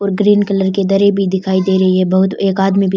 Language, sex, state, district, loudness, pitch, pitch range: Rajasthani, female, Rajasthan, Churu, -13 LUFS, 195 Hz, 190-195 Hz